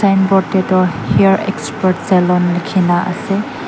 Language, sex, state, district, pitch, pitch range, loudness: Nagamese, female, Nagaland, Dimapur, 185 Hz, 180-195 Hz, -14 LUFS